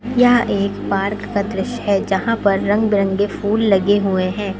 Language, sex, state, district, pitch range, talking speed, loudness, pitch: Hindi, female, Uttar Pradesh, Lucknow, 195-215 Hz, 185 wpm, -17 LUFS, 205 Hz